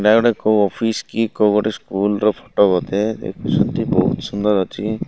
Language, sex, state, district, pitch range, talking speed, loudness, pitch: Odia, male, Odisha, Malkangiri, 105-110 Hz, 190 wpm, -18 LUFS, 105 Hz